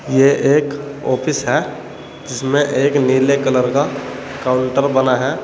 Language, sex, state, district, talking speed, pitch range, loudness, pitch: Hindi, male, Uttar Pradesh, Saharanpur, 130 wpm, 130-145 Hz, -16 LUFS, 135 Hz